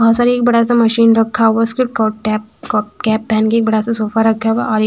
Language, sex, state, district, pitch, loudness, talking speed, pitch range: Hindi, female, Punjab, Fazilka, 225 Hz, -14 LUFS, 310 wpm, 220-230 Hz